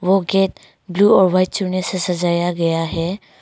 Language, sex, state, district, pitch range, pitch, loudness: Hindi, female, Arunachal Pradesh, Longding, 175-190 Hz, 185 Hz, -17 LUFS